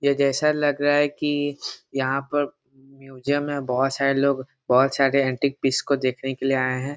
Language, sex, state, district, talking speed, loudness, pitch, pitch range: Hindi, male, Bihar, Muzaffarpur, 205 wpm, -23 LUFS, 140 Hz, 135-145 Hz